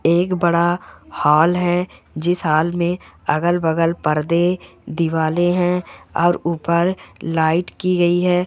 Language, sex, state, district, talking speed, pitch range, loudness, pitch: Hindi, male, Goa, North and South Goa, 125 wpm, 165-180 Hz, -18 LUFS, 175 Hz